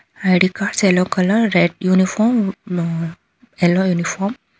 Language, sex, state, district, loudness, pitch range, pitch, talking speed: Kannada, female, Karnataka, Bangalore, -17 LUFS, 180-205 Hz, 190 Hz, 130 wpm